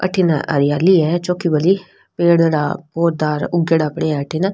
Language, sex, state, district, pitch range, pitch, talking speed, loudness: Rajasthani, female, Rajasthan, Nagaur, 155-180 Hz, 165 Hz, 160 wpm, -17 LUFS